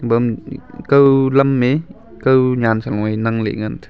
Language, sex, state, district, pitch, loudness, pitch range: Wancho, male, Arunachal Pradesh, Longding, 125 Hz, -16 LUFS, 110-135 Hz